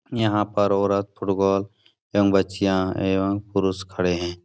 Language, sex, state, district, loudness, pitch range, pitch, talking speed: Hindi, male, Bihar, Supaul, -22 LUFS, 95-100 Hz, 100 Hz, 135 wpm